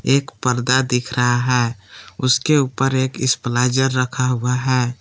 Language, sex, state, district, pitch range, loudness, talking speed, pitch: Hindi, male, Jharkhand, Palamu, 125-130 Hz, -18 LUFS, 145 wpm, 125 Hz